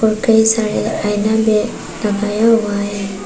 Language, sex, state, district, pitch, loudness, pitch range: Hindi, female, Arunachal Pradesh, Papum Pare, 215 Hz, -15 LUFS, 205-220 Hz